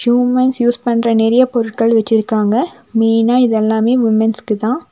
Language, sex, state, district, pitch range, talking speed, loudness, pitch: Tamil, female, Tamil Nadu, Nilgiris, 225-245 Hz, 135 wpm, -14 LUFS, 230 Hz